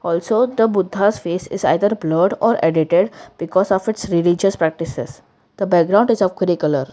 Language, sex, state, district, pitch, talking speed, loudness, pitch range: English, female, Gujarat, Valsad, 185 Hz, 165 wpm, -17 LUFS, 170-205 Hz